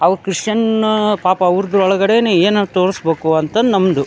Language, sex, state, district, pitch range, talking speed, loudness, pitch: Kannada, male, Karnataka, Dharwad, 180-210 Hz, 135 wpm, -14 LUFS, 195 Hz